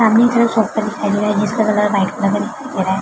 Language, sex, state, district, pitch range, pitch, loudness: Hindi, female, Uttar Pradesh, Jalaun, 205-220 Hz, 210 Hz, -16 LUFS